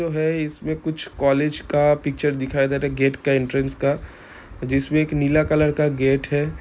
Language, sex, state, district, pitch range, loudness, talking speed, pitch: Hindi, male, Bihar, Gopalganj, 135-150 Hz, -21 LUFS, 210 wpm, 145 Hz